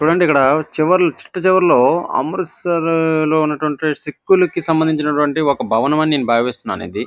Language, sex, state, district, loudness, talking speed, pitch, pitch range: Telugu, male, Andhra Pradesh, Visakhapatnam, -16 LUFS, 125 wpm, 155 Hz, 150-170 Hz